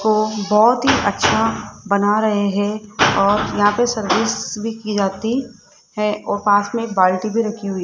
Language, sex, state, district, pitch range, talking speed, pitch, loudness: Hindi, female, Rajasthan, Jaipur, 205-220 Hz, 175 wpm, 210 Hz, -18 LUFS